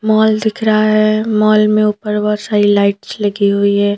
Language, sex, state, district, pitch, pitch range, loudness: Hindi, female, Madhya Pradesh, Bhopal, 215 Hz, 205-215 Hz, -13 LUFS